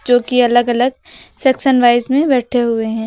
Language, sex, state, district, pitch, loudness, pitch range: Hindi, female, Uttar Pradesh, Lucknow, 245 Hz, -14 LUFS, 240-260 Hz